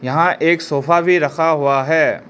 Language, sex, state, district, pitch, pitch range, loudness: Hindi, male, Arunachal Pradesh, Lower Dibang Valley, 160 Hz, 140-170 Hz, -15 LUFS